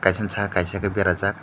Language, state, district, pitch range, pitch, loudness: Kokborok, Tripura, Dhalai, 95-100 Hz, 100 Hz, -23 LUFS